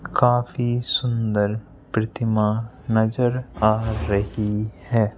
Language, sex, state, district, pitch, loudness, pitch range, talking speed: Hindi, male, Madhya Pradesh, Bhopal, 110 Hz, -22 LUFS, 105-120 Hz, 80 wpm